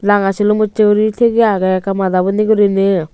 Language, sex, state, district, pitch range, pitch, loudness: Chakma, female, Tripura, Unakoti, 195-215 Hz, 205 Hz, -13 LUFS